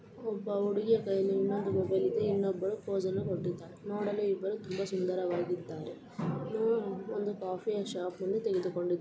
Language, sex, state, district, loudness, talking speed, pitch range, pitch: Kannada, female, Karnataka, Belgaum, -33 LUFS, 125 wpm, 185-205 Hz, 195 Hz